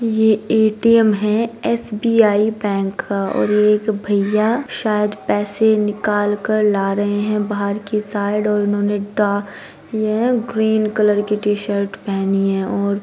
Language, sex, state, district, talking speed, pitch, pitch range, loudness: Hindi, female, Bihar, East Champaran, 150 wpm, 210 Hz, 205-220 Hz, -17 LUFS